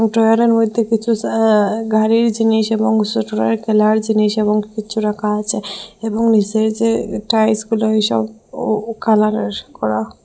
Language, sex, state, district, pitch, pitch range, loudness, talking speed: Bengali, female, Assam, Hailakandi, 220 Hz, 210-225 Hz, -16 LUFS, 130 wpm